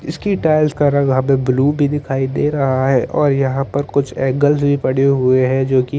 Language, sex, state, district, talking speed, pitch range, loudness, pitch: Hindi, male, Chandigarh, Chandigarh, 220 wpm, 130-145 Hz, -16 LUFS, 135 Hz